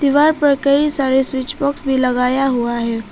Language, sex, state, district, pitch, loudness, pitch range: Hindi, female, Arunachal Pradesh, Papum Pare, 270 Hz, -15 LUFS, 250-285 Hz